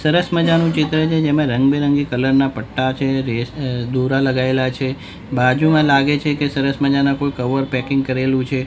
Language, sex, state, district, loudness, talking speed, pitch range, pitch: Gujarati, male, Gujarat, Gandhinagar, -17 LUFS, 180 wpm, 130-145 Hz, 135 Hz